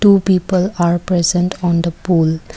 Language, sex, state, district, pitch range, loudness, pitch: English, female, Assam, Kamrup Metropolitan, 170-185 Hz, -15 LUFS, 180 Hz